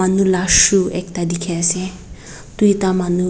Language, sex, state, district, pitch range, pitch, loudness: Nagamese, female, Nagaland, Dimapur, 180-190 Hz, 185 Hz, -15 LUFS